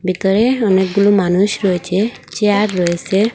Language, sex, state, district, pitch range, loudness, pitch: Bengali, female, Assam, Hailakandi, 185-210 Hz, -15 LUFS, 200 Hz